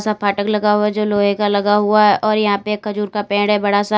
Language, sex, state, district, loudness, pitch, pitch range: Hindi, female, Uttar Pradesh, Lalitpur, -16 LUFS, 210 Hz, 205-210 Hz